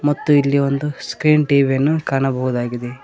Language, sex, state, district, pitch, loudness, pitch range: Kannada, male, Karnataka, Koppal, 140 Hz, -17 LUFS, 135-150 Hz